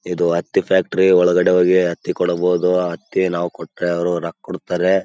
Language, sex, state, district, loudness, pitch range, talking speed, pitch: Kannada, male, Karnataka, Raichur, -18 LUFS, 85-90 Hz, 130 wpm, 90 Hz